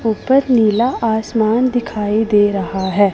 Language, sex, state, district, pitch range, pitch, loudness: Hindi, female, Punjab, Pathankot, 205-235 Hz, 220 Hz, -15 LUFS